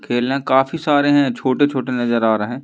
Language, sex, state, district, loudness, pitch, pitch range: Hindi, male, Madhya Pradesh, Umaria, -17 LUFS, 130 Hz, 120-145 Hz